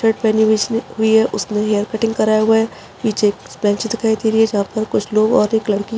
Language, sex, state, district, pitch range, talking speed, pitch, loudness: Hindi, female, Chhattisgarh, Rajnandgaon, 210-225 Hz, 250 wpm, 220 Hz, -17 LUFS